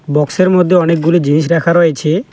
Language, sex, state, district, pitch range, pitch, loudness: Bengali, male, West Bengal, Alipurduar, 155-180 Hz, 170 Hz, -11 LUFS